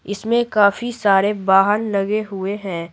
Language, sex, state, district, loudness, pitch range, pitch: Hindi, female, Bihar, Patna, -18 LUFS, 195-215 Hz, 205 Hz